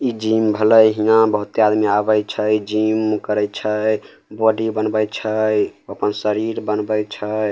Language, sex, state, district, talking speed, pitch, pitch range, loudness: Maithili, male, Bihar, Samastipur, 145 wpm, 110 Hz, 105-110 Hz, -18 LUFS